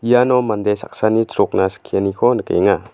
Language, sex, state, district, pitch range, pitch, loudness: Garo, male, Meghalaya, West Garo Hills, 100-120 Hz, 110 Hz, -17 LUFS